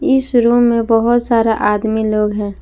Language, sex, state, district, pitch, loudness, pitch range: Hindi, female, Jharkhand, Palamu, 225 Hz, -14 LUFS, 215-240 Hz